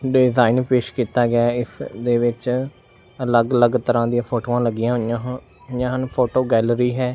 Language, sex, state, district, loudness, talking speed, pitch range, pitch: Punjabi, male, Punjab, Fazilka, -20 LUFS, 160 wpm, 120-125 Hz, 120 Hz